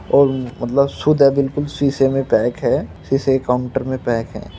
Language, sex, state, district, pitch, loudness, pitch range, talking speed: Hindi, male, Uttar Pradesh, Muzaffarnagar, 135 Hz, -18 LUFS, 125-140 Hz, 210 wpm